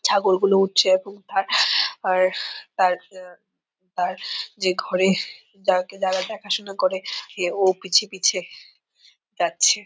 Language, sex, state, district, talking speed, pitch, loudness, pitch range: Bengali, female, West Bengal, Purulia, 95 wpm, 190 Hz, -22 LUFS, 185-200 Hz